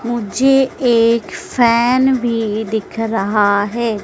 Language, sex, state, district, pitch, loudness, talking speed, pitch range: Hindi, female, Madhya Pradesh, Dhar, 230 Hz, -15 LUFS, 105 wpm, 220-240 Hz